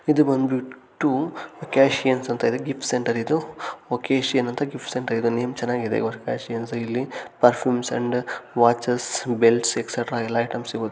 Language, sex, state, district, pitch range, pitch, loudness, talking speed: Kannada, male, Karnataka, Gulbarga, 115-130 Hz, 120 Hz, -23 LUFS, 145 wpm